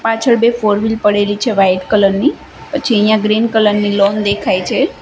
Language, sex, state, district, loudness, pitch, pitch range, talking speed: Gujarati, female, Gujarat, Gandhinagar, -13 LUFS, 215 Hz, 205-230 Hz, 205 wpm